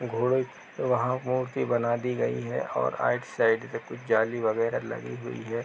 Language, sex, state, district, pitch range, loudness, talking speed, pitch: Hindi, male, Uttar Pradesh, Jalaun, 110-125 Hz, -28 LUFS, 200 wpm, 120 Hz